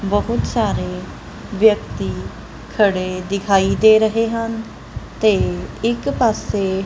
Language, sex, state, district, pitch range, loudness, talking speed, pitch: Punjabi, female, Punjab, Kapurthala, 190-225 Hz, -18 LUFS, 95 wpm, 205 Hz